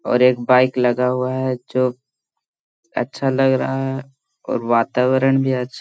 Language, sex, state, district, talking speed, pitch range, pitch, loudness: Hindi, male, Bihar, Gaya, 165 wpm, 125-135 Hz, 130 Hz, -19 LUFS